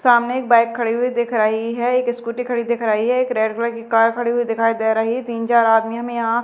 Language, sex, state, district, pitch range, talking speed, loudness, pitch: Hindi, female, Madhya Pradesh, Dhar, 230-240 Hz, 270 wpm, -18 LUFS, 235 Hz